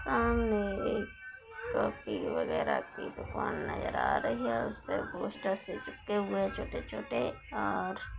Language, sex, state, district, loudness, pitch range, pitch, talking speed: Hindi, female, Bihar, Darbhanga, -34 LUFS, 195-265 Hz, 215 Hz, 140 wpm